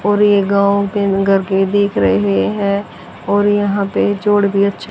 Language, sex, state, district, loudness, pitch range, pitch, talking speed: Hindi, female, Haryana, Jhajjar, -14 LUFS, 195-205 Hz, 200 Hz, 185 wpm